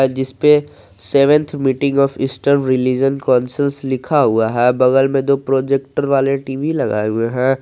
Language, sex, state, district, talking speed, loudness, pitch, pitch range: Hindi, male, Jharkhand, Garhwa, 150 wpm, -16 LUFS, 135 Hz, 130-140 Hz